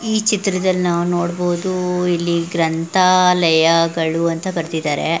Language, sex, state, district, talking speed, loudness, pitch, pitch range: Kannada, female, Karnataka, Belgaum, 105 wpm, -17 LUFS, 175 Hz, 165-185 Hz